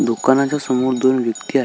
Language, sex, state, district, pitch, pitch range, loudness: Marathi, male, Maharashtra, Solapur, 130 Hz, 125-135 Hz, -17 LUFS